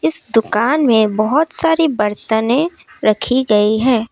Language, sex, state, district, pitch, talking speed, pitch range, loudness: Hindi, female, Assam, Kamrup Metropolitan, 225 Hz, 130 wpm, 215-290 Hz, -15 LUFS